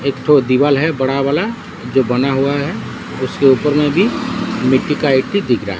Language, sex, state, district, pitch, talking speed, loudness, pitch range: Hindi, male, Odisha, Sambalpur, 140 Hz, 205 wpm, -15 LUFS, 130-150 Hz